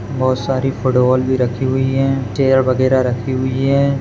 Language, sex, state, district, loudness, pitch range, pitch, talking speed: Hindi, male, Maharashtra, Dhule, -16 LUFS, 130-135 Hz, 130 Hz, 180 wpm